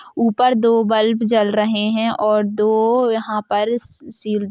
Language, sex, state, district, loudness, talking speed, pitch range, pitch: Hindi, female, Bihar, Gopalganj, -17 LUFS, 160 wpm, 210-230 Hz, 220 Hz